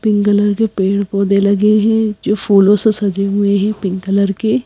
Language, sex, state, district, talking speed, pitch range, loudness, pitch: Hindi, female, Madhya Pradesh, Bhopal, 205 wpm, 200-215 Hz, -14 LUFS, 205 Hz